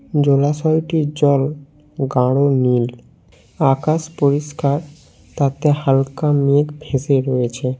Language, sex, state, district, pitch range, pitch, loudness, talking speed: Bengali, male, West Bengal, Cooch Behar, 135-150 Hz, 140 Hz, -17 LUFS, 85 wpm